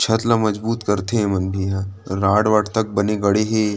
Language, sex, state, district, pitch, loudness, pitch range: Chhattisgarhi, male, Chhattisgarh, Rajnandgaon, 105 Hz, -19 LUFS, 100-110 Hz